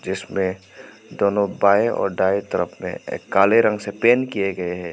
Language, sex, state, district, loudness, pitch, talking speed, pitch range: Hindi, male, Arunachal Pradesh, Papum Pare, -20 LUFS, 100 Hz, 170 wpm, 95-105 Hz